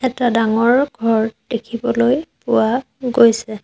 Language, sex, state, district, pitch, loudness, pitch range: Assamese, female, Assam, Sonitpur, 235 Hz, -17 LUFS, 225-250 Hz